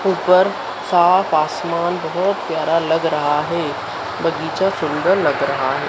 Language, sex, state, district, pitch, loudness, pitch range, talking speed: Hindi, female, Madhya Pradesh, Dhar, 165 Hz, -18 LUFS, 155-185 Hz, 130 wpm